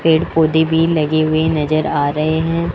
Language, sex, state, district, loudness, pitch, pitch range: Hindi, male, Rajasthan, Jaipur, -15 LUFS, 160 Hz, 155-160 Hz